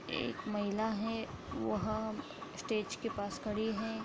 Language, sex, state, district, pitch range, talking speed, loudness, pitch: Hindi, female, Bihar, Araria, 210-225 Hz, 135 wpm, -38 LUFS, 220 Hz